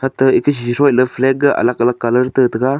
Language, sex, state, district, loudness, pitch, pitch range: Wancho, male, Arunachal Pradesh, Longding, -14 LUFS, 130 Hz, 125-135 Hz